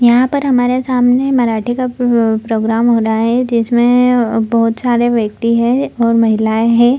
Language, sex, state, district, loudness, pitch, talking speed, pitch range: Hindi, female, Bihar, Samastipur, -13 LUFS, 235 Hz, 155 wpm, 225-250 Hz